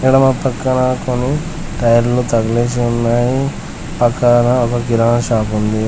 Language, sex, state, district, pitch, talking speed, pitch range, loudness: Telugu, male, Telangana, Komaram Bheem, 120 Hz, 120 wpm, 115-130 Hz, -15 LUFS